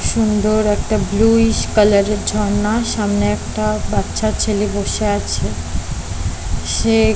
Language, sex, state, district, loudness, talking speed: Bengali, female, West Bengal, Kolkata, -17 LUFS, 100 wpm